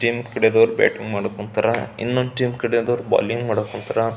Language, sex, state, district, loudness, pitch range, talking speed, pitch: Kannada, male, Karnataka, Belgaum, -21 LUFS, 115-120 Hz, 160 wpm, 120 Hz